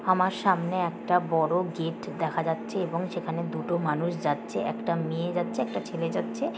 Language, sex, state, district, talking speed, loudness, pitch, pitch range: Bengali, female, West Bengal, Kolkata, 165 wpm, -28 LUFS, 170 Hz, 165-180 Hz